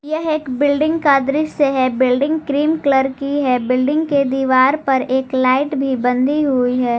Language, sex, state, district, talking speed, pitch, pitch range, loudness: Hindi, female, Jharkhand, Garhwa, 180 wpm, 275 Hz, 260-290 Hz, -16 LUFS